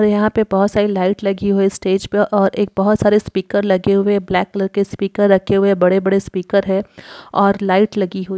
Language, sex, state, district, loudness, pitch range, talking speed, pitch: Hindi, female, Uttar Pradesh, Varanasi, -16 LUFS, 195-205 Hz, 235 wpm, 195 Hz